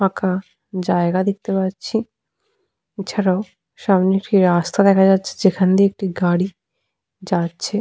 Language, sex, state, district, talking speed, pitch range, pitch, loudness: Bengali, female, Jharkhand, Sahebganj, 115 wpm, 185-200 Hz, 190 Hz, -18 LUFS